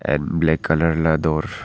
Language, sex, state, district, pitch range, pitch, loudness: Hindi, male, Arunachal Pradesh, Papum Pare, 80-85 Hz, 80 Hz, -19 LUFS